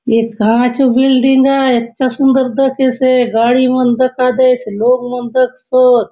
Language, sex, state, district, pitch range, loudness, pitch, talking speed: Halbi, female, Chhattisgarh, Bastar, 245-260 Hz, -12 LUFS, 255 Hz, 155 wpm